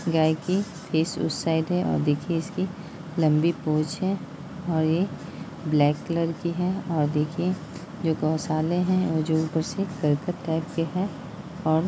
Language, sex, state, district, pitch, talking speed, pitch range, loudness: Hindi, male, Bihar, Jahanabad, 165 Hz, 160 wpm, 160-180 Hz, -26 LUFS